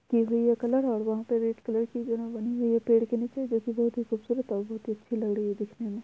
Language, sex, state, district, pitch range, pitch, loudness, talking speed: Hindi, female, Bihar, Araria, 220-235 Hz, 230 Hz, -29 LUFS, 290 wpm